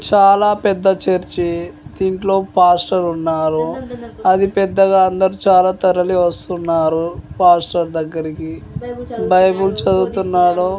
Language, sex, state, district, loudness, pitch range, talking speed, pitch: Telugu, female, Telangana, Nalgonda, -15 LUFS, 170-195 Hz, 95 wpm, 185 Hz